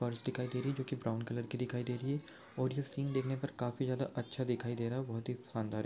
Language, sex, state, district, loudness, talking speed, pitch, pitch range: Hindi, male, Rajasthan, Churu, -39 LUFS, 275 wpm, 125 Hz, 120-135 Hz